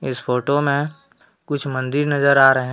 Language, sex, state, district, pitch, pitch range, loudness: Hindi, male, Jharkhand, Deoghar, 140 Hz, 130-145 Hz, -18 LUFS